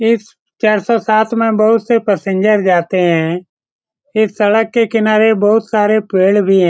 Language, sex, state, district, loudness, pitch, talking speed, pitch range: Hindi, male, Bihar, Saran, -13 LUFS, 215 Hz, 180 wpm, 195-225 Hz